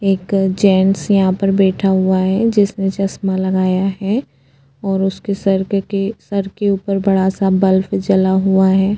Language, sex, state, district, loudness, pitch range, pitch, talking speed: Hindi, female, Goa, North and South Goa, -16 LUFS, 190-195 Hz, 195 Hz, 160 wpm